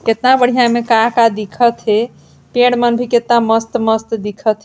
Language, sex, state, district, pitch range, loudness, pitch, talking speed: Hindi, female, Chhattisgarh, Sarguja, 225-240 Hz, -14 LUFS, 235 Hz, 165 wpm